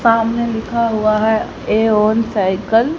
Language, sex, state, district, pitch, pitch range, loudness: Hindi, female, Haryana, Rohtak, 220 Hz, 215-230 Hz, -16 LUFS